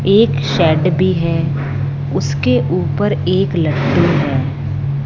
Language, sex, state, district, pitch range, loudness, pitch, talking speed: Hindi, male, Punjab, Fazilka, 135-170 Hz, -15 LUFS, 140 Hz, 105 wpm